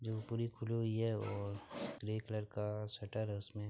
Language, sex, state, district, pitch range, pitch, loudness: Bhojpuri, male, Uttar Pradesh, Gorakhpur, 105-115 Hz, 110 Hz, -41 LUFS